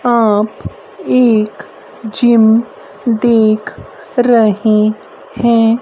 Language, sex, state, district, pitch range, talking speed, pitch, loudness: Hindi, female, Haryana, Rohtak, 215-235 Hz, 60 wpm, 225 Hz, -12 LUFS